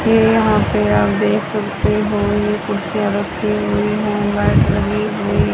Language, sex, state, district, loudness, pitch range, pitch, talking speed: Hindi, male, Haryana, Rohtak, -16 LUFS, 190-210 Hz, 205 Hz, 160 wpm